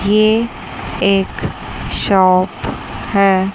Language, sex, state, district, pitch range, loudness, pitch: Hindi, female, Chandigarh, Chandigarh, 190-210 Hz, -16 LUFS, 195 Hz